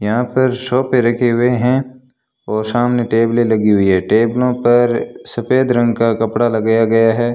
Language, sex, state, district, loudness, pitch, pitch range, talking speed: Hindi, male, Rajasthan, Bikaner, -15 LUFS, 120 Hz, 115-125 Hz, 170 wpm